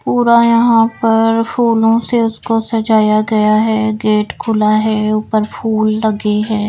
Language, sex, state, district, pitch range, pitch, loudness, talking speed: Hindi, female, Bihar, Patna, 215-225 Hz, 220 Hz, -13 LUFS, 145 wpm